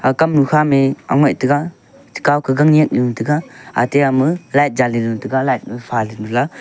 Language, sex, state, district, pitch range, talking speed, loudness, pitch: Wancho, male, Arunachal Pradesh, Longding, 120-150 Hz, 210 wpm, -16 LUFS, 135 Hz